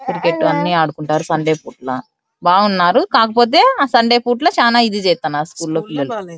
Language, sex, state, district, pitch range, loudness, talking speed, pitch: Telugu, female, Andhra Pradesh, Anantapur, 155-240 Hz, -15 LUFS, 150 wpm, 175 Hz